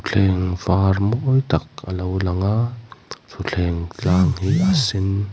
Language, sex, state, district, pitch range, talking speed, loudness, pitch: Mizo, male, Mizoram, Aizawl, 90-115 Hz, 135 wpm, -20 LUFS, 95 Hz